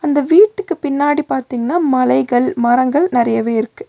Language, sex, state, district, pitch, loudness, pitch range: Tamil, female, Tamil Nadu, Nilgiris, 270 Hz, -15 LUFS, 240-320 Hz